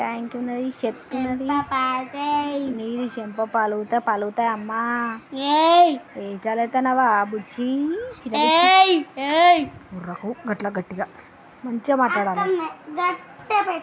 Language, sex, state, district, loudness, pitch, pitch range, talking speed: Telugu, female, Andhra Pradesh, Srikakulam, -21 LUFS, 255 Hz, 225-295 Hz, 80 wpm